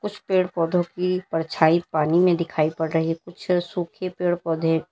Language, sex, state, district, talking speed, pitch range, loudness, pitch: Hindi, female, Uttar Pradesh, Lalitpur, 170 wpm, 165-180 Hz, -23 LUFS, 175 Hz